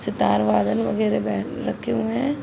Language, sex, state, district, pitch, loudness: Hindi, female, Uttar Pradesh, Jalaun, 115 Hz, -22 LUFS